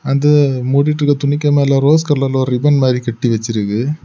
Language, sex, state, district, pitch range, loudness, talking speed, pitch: Tamil, male, Tamil Nadu, Kanyakumari, 125-145 Hz, -14 LUFS, 165 wpm, 140 Hz